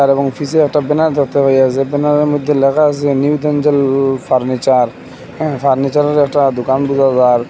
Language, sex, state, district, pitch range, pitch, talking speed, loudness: Bengali, male, Assam, Hailakandi, 135-145 Hz, 140 Hz, 150 wpm, -13 LUFS